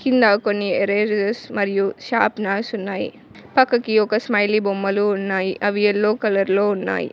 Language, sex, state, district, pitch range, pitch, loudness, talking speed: Telugu, female, Telangana, Mahabubabad, 195-215 Hz, 205 Hz, -19 LUFS, 135 wpm